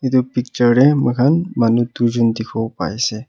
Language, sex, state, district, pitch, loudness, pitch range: Nagamese, male, Nagaland, Kohima, 120 Hz, -17 LUFS, 115-130 Hz